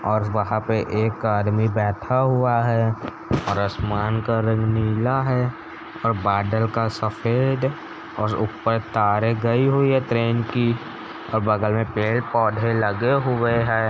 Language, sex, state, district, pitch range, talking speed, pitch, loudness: Hindi, male, Uttar Pradesh, Jalaun, 110-120 Hz, 140 wpm, 115 Hz, -22 LUFS